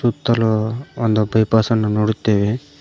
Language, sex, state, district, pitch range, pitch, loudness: Kannada, male, Karnataka, Koppal, 110-120 Hz, 110 Hz, -18 LUFS